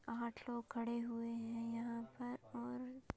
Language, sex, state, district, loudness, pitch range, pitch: Hindi, female, Uttar Pradesh, Hamirpur, -45 LUFS, 230-245 Hz, 235 Hz